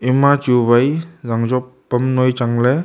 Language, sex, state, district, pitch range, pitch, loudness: Wancho, male, Arunachal Pradesh, Longding, 120-135 Hz, 125 Hz, -16 LUFS